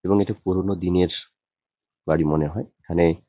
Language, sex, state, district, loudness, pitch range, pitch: Bengali, male, West Bengal, Paschim Medinipur, -23 LUFS, 85-100 Hz, 90 Hz